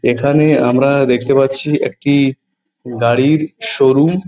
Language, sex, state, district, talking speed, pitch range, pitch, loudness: Bengali, male, West Bengal, Purulia, 110 wpm, 130-150 Hz, 140 Hz, -13 LUFS